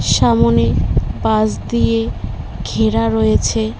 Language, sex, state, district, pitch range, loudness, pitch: Bengali, female, West Bengal, Cooch Behar, 105-115 Hz, -16 LUFS, 110 Hz